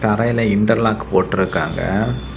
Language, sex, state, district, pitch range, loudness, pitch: Tamil, male, Tamil Nadu, Kanyakumari, 105-115 Hz, -18 LUFS, 110 Hz